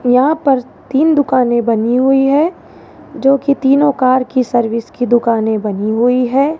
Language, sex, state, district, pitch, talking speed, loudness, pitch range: Hindi, male, Rajasthan, Jaipur, 255 Hz, 165 wpm, -13 LUFS, 240-275 Hz